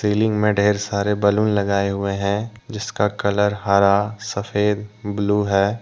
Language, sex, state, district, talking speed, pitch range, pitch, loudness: Hindi, male, Jharkhand, Deoghar, 145 wpm, 100-105 Hz, 105 Hz, -20 LUFS